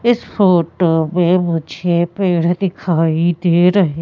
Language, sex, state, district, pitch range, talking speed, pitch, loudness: Hindi, female, Madhya Pradesh, Katni, 165-185 Hz, 120 wpm, 175 Hz, -15 LUFS